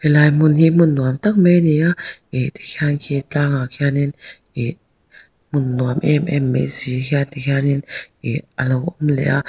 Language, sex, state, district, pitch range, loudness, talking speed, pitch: Mizo, female, Mizoram, Aizawl, 135-155 Hz, -17 LUFS, 175 wpm, 140 Hz